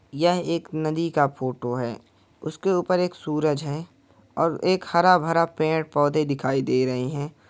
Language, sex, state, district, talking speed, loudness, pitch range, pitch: Hindi, male, Bihar, Purnia, 150 wpm, -24 LUFS, 130-165 Hz, 155 Hz